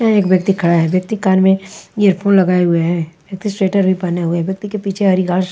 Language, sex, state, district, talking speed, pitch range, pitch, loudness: Hindi, female, Punjab, Fazilka, 260 wpm, 175-200 Hz, 190 Hz, -15 LUFS